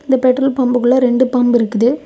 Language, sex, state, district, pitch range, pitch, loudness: Tamil, female, Tamil Nadu, Kanyakumari, 245-260 Hz, 255 Hz, -13 LUFS